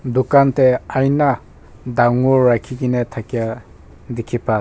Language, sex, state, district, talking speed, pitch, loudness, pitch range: Nagamese, male, Nagaland, Kohima, 130 wpm, 120 Hz, -17 LUFS, 115-130 Hz